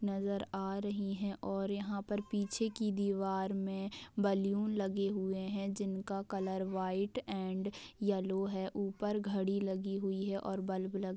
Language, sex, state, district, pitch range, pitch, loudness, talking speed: Hindi, female, Jharkhand, Jamtara, 195-200 Hz, 195 Hz, -37 LUFS, 155 wpm